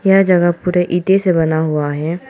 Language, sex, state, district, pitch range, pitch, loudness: Hindi, female, Arunachal Pradesh, Papum Pare, 160-185 Hz, 175 Hz, -15 LUFS